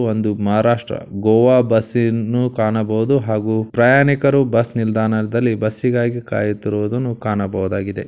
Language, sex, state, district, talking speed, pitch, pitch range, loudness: Kannada, male, Karnataka, Belgaum, 105 wpm, 110 Hz, 110-120 Hz, -17 LUFS